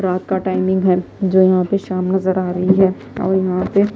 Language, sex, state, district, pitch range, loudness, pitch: Hindi, female, Himachal Pradesh, Shimla, 185-190 Hz, -17 LUFS, 185 Hz